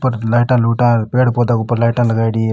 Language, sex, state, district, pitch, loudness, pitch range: Rajasthani, male, Rajasthan, Nagaur, 120 Hz, -14 LUFS, 115-120 Hz